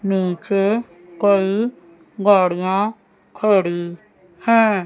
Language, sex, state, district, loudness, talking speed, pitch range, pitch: Hindi, female, Chandigarh, Chandigarh, -18 LUFS, 60 wpm, 180-210 Hz, 195 Hz